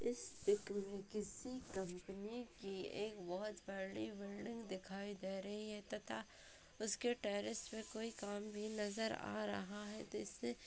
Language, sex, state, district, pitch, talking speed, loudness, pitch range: Hindi, female, Bihar, Purnia, 205 Hz, 145 wpm, -46 LUFS, 195-215 Hz